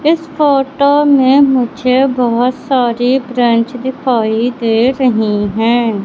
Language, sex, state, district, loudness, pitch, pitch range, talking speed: Hindi, female, Madhya Pradesh, Katni, -12 LUFS, 250 Hz, 235-270 Hz, 120 wpm